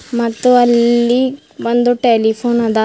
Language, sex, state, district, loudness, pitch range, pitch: Kannada, female, Karnataka, Bidar, -13 LUFS, 235-245 Hz, 235 Hz